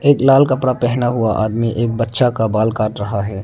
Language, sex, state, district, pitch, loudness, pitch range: Hindi, male, Arunachal Pradesh, Lower Dibang Valley, 115 Hz, -16 LUFS, 110-125 Hz